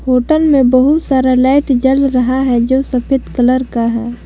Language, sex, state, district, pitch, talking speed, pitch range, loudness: Hindi, female, Jharkhand, Palamu, 260 Hz, 185 wpm, 250-270 Hz, -12 LUFS